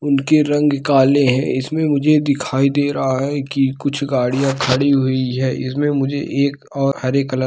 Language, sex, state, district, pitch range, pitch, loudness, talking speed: Hindi, male, Andhra Pradesh, Chittoor, 130-145 Hz, 140 Hz, -17 LUFS, 135 wpm